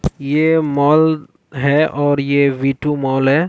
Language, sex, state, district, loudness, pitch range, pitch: Hindi, male, Chhattisgarh, Balrampur, -15 LUFS, 140-155 Hz, 145 Hz